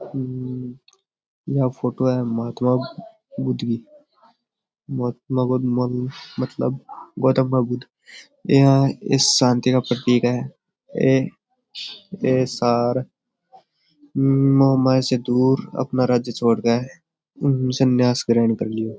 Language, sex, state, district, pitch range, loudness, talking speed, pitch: Rajasthani, male, Rajasthan, Churu, 125-150 Hz, -20 LUFS, 105 wpm, 130 Hz